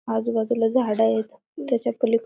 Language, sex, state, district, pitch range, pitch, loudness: Marathi, female, Maharashtra, Aurangabad, 225-245 Hz, 230 Hz, -23 LUFS